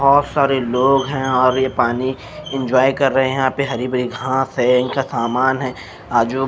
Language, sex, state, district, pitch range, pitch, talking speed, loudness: Hindi, male, Maharashtra, Mumbai Suburban, 125-135 Hz, 130 Hz, 205 wpm, -17 LUFS